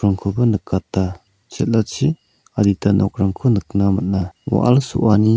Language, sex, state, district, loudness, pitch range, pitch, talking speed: Garo, male, Meghalaya, South Garo Hills, -18 LUFS, 95-115 Hz, 100 Hz, 90 wpm